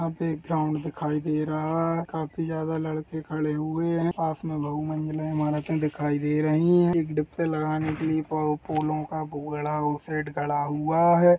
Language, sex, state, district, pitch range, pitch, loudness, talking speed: Hindi, male, Chhattisgarh, Rajnandgaon, 150-160 Hz, 155 Hz, -27 LUFS, 190 wpm